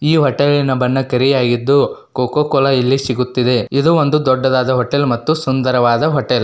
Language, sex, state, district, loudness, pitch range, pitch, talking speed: Kannada, male, Karnataka, Dakshina Kannada, -14 LUFS, 125-145 Hz, 130 Hz, 140 wpm